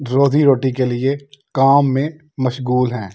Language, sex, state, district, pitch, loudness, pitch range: Hindi, male, Delhi, New Delhi, 135 Hz, -17 LUFS, 130-140 Hz